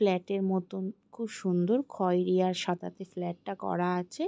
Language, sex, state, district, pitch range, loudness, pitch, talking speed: Bengali, female, West Bengal, Jalpaiguri, 180-200 Hz, -31 LUFS, 185 Hz, 155 wpm